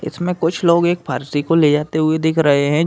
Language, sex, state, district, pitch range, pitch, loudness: Hindi, male, Uttar Pradesh, Hamirpur, 150-170 Hz, 160 Hz, -16 LUFS